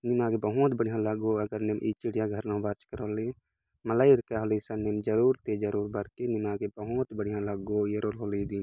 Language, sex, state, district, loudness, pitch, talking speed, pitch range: Sadri, male, Chhattisgarh, Jashpur, -30 LUFS, 105 Hz, 200 wpm, 105-115 Hz